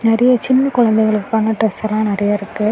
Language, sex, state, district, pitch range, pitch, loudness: Tamil, female, Tamil Nadu, Kanyakumari, 215-230 Hz, 220 Hz, -15 LUFS